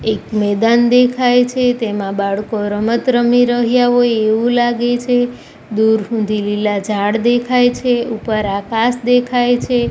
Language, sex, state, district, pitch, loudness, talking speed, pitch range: Gujarati, female, Gujarat, Gandhinagar, 235 Hz, -15 LUFS, 140 wpm, 215-245 Hz